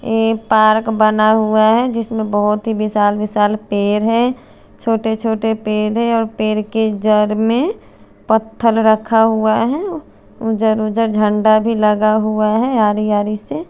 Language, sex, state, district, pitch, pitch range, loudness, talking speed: Hindi, female, Chandigarh, Chandigarh, 220 Hz, 215-225 Hz, -15 LUFS, 155 wpm